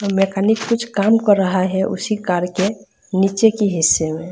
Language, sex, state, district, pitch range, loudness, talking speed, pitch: Hindi, female, Bihar, Darbhanga, 185-210 Hz, -17 LUFS, 180 wpm, 195 Hz